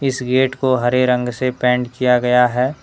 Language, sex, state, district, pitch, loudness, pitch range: Hindi, male, Jharkhand, Deoghar, 125 Hz, -16 LUFS, 125-130 Hz